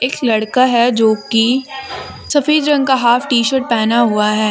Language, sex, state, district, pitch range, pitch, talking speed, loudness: Hindi, female, Jharkhand, Deoghar, 225-265 Hz, 245 Hz, 185 wpm, -14 LUFS